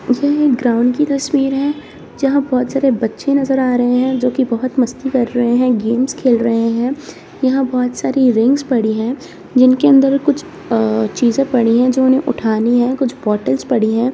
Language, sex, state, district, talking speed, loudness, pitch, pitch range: Hindi, female, Bihar, Lakhisarai, 190 wpm, -15 LUFS, 255 Hz, 240-275 Hz